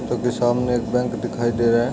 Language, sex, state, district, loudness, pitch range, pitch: Hindi, male, Uttar Pradesh, Ghazipur, -21 LUFS, 120-125 Hz, 120 Hz